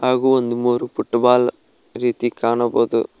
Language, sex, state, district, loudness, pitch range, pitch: Kannada, male, Karnataka, Koppal, -19 LUFS, 120-125 Hz, 120 Hz